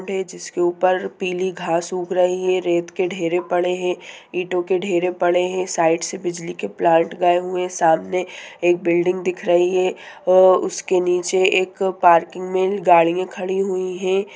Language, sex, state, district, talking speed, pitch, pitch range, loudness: Hindi, female, Bihar, Sitamarhi, 170 wpm, 180 Hz, 175-185 Hz, -19 LUFS